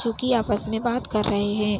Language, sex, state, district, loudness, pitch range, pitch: Hindi, female, Uttar Pradesh, Hamirpur, -24 LUFS, 210-240 Hz, 220 Hz